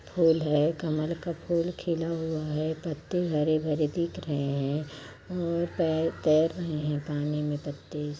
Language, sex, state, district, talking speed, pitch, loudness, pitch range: Hindi, female, Chhattisgarh, Jashpur, 155 wpm, 155 Hz, -29 LUFS, 150-170 Hz